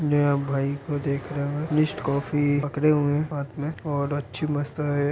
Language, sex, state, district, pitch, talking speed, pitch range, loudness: Hindi, male, Uttar Pradesh, Gorakhpur, 145 Hz, 185 wpm, 140-150 Hz, -25 LUFS